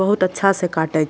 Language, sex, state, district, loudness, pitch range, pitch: Maithili, female, Bihar, Madhepura, -18 LUFS, 160-195 Hz, 180 Hz